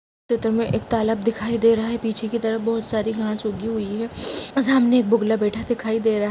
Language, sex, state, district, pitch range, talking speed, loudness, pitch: Angika, female, Bihar, Madhepura, 220-230 Hz, 240 wpm, -22 LUFS, 225 Hz